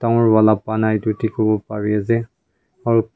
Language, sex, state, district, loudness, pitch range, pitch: Nagamese, male, Nagaland, Kohima, -18 LUFS, 110-115 Hz, 110 Hz